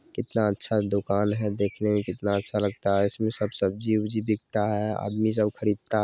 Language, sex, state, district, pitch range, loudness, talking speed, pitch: Maithili, male, Bihar, Supaul, 100-110 Hz, -26 LUFS, 200 wpm, 105 Hz